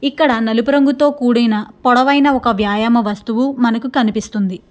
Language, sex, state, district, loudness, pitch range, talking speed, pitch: Telugu, female, Andhra Pradesh, Krishna, -15 LUFS, 220-280 Hz, 115 wpm, 240 Hz